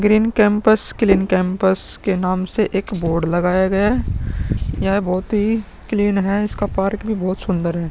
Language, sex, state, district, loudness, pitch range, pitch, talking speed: Hindi, male, Uttar Pradesh, Muzaffarnagar, -18 LUFS, 185-210 Hz, 195 Hz, 175 wpm